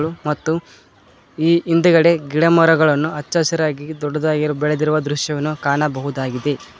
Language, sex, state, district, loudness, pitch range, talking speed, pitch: Kannada, male, Karnataka, Koppal, -17 LUFS, 145-160 Hz, 95 wpm, 150 Hz